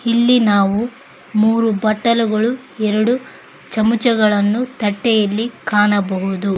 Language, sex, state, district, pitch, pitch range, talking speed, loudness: Kannada, female, Karnataka, Koppal, 220 Hz, 205-235 Hz, 75 wpm, -16 LUFS